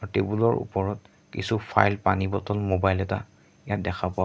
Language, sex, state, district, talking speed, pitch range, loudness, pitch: Assamese, male, Assam, Sonitpur, 185 wpm, 95-105 Hz, -26 LUFS, 100 Hz